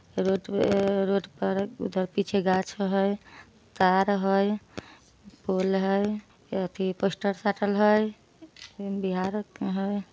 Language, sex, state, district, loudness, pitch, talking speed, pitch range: Magahi, female, Bihar, Samastipur, -27 LUFS, 195 Hz, 125 wpm, 190-205 Hz